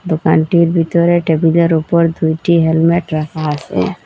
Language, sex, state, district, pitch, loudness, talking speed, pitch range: Bengali, female, Assam, Hailakandi, 165 Hz, -13 LUFS, 135 wpm, 160-170 Hz